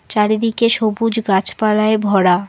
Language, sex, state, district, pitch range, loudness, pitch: Bengali, female, West Bengal, Alipurduar, 200-225 Hz, -15 LUFS, 215 Hz